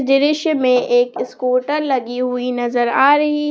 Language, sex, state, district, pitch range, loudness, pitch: Hindi, female, Jharkhand, Palamu, 245-290 Hz, -17 LUFS, 255 Hz